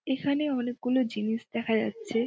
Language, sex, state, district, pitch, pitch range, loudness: Bengali, female, West Bengal, Dakshin Dinajpur, 245 Hz, 225-270 Hz, -29 LUFS